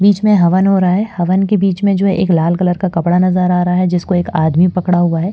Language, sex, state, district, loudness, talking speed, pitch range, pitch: Hindi, female, Delhi, New Delhi, -13 LUFS, 290 wpm, 175-195 Hz, 180 Hz